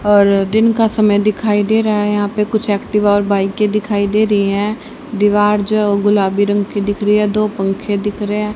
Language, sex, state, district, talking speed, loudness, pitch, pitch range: Hindi, female, Haryana, Charkhi Dadri, 215 wpm, -15 LUFS, 205 Hz, 205-210 Hz